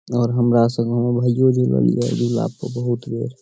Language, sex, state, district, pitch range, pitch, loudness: Maithili, male, Bihar, Saharsa, 115-120 Hz, 120 Hz, -19 LUFS